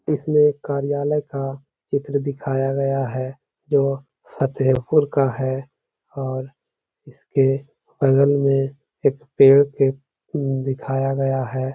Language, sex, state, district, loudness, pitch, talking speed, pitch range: Hindi, male, Uttar Pradesh, Hamirpur, -21 LUFS, 135 Hz, 105 wpm, 135-140 Hz